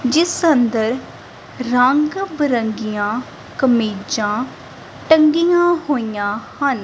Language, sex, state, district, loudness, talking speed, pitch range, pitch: Punjabi, female, Punjab, Kapurthala, -17 LUFS, 70 wpm, 220-310 Hz, 255 Hz